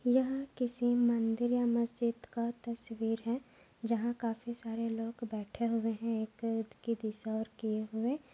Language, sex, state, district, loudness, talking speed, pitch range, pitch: Hindi, female, Maharashtra, Aurangabad, -35 LUFS, 150 wpm, 225-240 Hz, 230 Hz